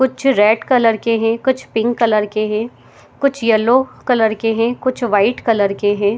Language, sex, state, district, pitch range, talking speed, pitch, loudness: Hindi, female, Chhattisgarh, Bilaspur, 215-250 Hz, 185 wpm, 225 Hz, -16 LUFS